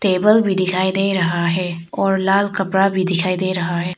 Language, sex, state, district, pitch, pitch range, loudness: Hindi, female, Arunachal Pradesh, Papum Pare, 185 Hz, 180-195 Hz, -18 LUFS